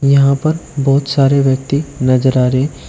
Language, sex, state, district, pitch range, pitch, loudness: Hindi, male, Uttar Pradesh, Shamli, 130-140 Hz, 140 Hz, -14 LUFS